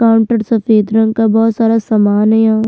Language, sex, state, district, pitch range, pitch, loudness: Hindi, female, Uttarakhand, Tehri Garhwal, 220-225 Hz, 225 Hz, -12 LUFS